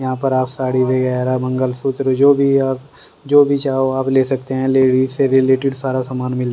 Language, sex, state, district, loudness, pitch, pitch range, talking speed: Hindi, male, Haryana, Rohtak, -16 LUFS, 130 Hz, 130-135 Hz, 200 wpm